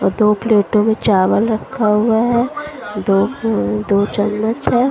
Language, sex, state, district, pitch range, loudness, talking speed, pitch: Hindi, female, Punjab, Fazilka, 205-230 Hz, -16 LUFS, 145 wpm, 215 Hz